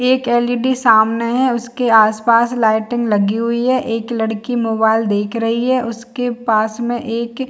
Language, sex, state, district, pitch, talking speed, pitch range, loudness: Hindi, female, Chhattisgarh, Bilaspur, 235 Hz, 185 wpm, 220-245 Hz, -16 LUFS